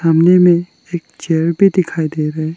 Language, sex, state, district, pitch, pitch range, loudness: Hindi, male, Arunachal Pradesh, Lower Dibang Valley, 170 Hz, 160-175 Hz, -14 LUFS